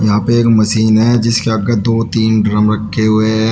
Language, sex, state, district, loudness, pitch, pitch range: Hindi, male, Uttar Pradesh, Shamli, -12 LUFS, 110 Hz, 110-115 Hz